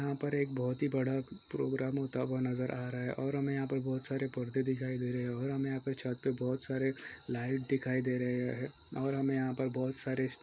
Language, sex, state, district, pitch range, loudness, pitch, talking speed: Hindi, male, Chhattisgarh, Sukma, 125-135 Hz, -36 LUFS, 130 Hz, 255 wpm